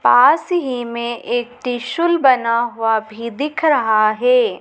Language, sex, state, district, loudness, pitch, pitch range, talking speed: Hindi, female, Madhya Pradesh, Dhar, -17 LUFS, 245 Hz, 230-300 Hz, 145 wpm